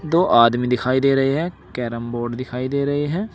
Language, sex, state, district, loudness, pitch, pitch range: Hindi, male, Uttar Pradesh, Saharanpur, -20 LUFS, 130 Hz, 120-145 Hz